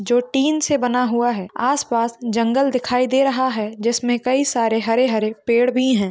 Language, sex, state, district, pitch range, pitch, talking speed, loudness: Hindi, female, Maharashtra, Dhule, 230-260 Hz, 245 Hz, 185 wpm, -19 LUFS